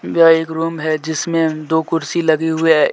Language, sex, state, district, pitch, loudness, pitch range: Hindi, male, Jharkhand, Deoghar, 160 Hz, -16 LUFS, 160-165 Hz